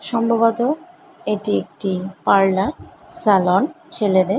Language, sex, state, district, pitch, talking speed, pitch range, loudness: Bengali, female, West Bengal, Kolkata, 210 Hz, 95 wpm, 190-295 Hz, -19 LUFS